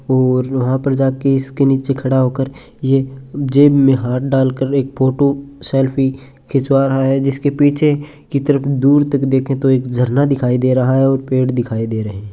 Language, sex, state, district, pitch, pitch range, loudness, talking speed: Hindi, male, Rajasthan, Churu, 135 Hz, 130-140 Hz, -15 LUFS, 190 wpm